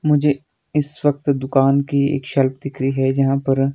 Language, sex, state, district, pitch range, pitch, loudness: Hindi, male, Himachal Pradesh, Shimla, 135-145 Hz, 140 Hz, -19 LUFS